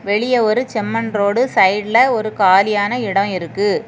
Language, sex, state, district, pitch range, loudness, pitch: Tamil, female, Tamil Nadu, Kanyakumari, 200-230 Hz, -16 LUFS, 210 Hz